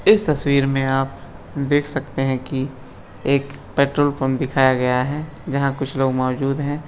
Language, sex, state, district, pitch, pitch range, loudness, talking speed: Hindi, male, Rajasthan, Nagaur, 135 Hz, 130-145 Hz, -20 LUFS, 165 wpm